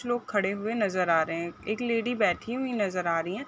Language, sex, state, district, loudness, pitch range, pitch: Hindi, female, Chhattisgarh, Bilaspur, -28 LUFS, 180-235 Hz, 210 Hz